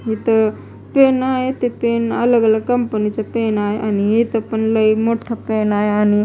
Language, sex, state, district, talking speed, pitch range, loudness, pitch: Marathi, female, Maharashtra, Mumbai Suburban, 180 wpm, 215-235 Hz, -17 LUFS, 220 Hz